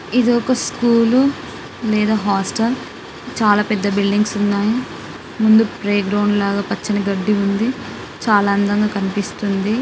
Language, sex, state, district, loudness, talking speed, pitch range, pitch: Telugu, female, Andhra Pradesh, Guntur, -17 LUFS, 110 wpm, 200-225 Hz, 210 Hz